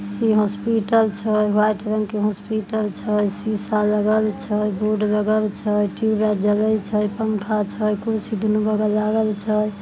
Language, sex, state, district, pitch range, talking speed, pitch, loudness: Maithili, female, Bihar, Samastipur, 210-215 Hz, 155 wpm, 215 Hz, -21 LUFS